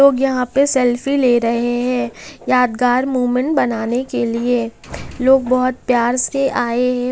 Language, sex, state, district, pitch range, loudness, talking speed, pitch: Hindi, female, Bihar, Kaimur, 240-260 Hz, -17 LUFS, 150 wpm, 250 Hz